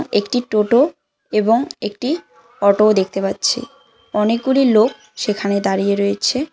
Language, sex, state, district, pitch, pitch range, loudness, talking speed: Bengali, female, West Bengal, Cooch Behar, 215 Hz, 200-255 Hz, -17 LUFS, 120 wpm